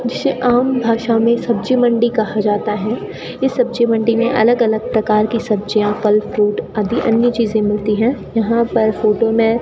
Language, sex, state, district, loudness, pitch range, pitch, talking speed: Hindi, female, Rajasthan, Bikaner, -16 LUFS, 215-235 Hz, 230 Hz, 185 wpm